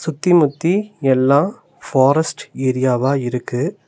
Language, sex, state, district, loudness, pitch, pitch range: Tamil, male, Tamil Nadu, Nilgiris, -17 LUFS, 140 Hz, 130-165 Hz